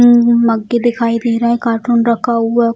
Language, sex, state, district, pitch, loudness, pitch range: Hindi, female, Bihar, Jamui, 235 Hz, -13 LUFS, 230-240 Hz